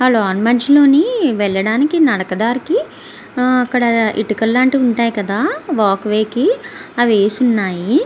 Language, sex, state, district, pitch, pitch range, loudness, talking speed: Telugu, female, Andhra Pradesh, Visakhapatnam, 240 Hz, 215-280 Hz, -15 LUFS, 95 wpm